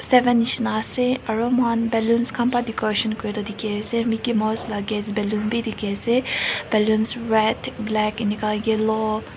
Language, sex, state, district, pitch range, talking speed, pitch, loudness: Nagamese, female, Nagaland, Kohima, 215-235 Hz, 185 wpm, 220 Hz, -21 LUFS